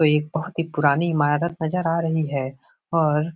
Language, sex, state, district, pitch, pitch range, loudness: Hindi, male, Bihar, Jahanabad, 160 Hz, 150-165 Hz, -22 LUFS